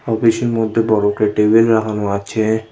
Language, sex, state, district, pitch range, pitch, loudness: Bengali, male, West Bengal, Cooch Behar, 105-115 Hz, 110 Hz, -16 LUFS